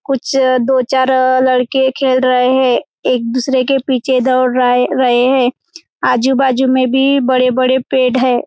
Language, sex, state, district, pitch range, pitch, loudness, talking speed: Hindi, male, Maharashtra, Chandrapur, 255-265 Hz, 255 Hz, -13 LUFS, 140 wpm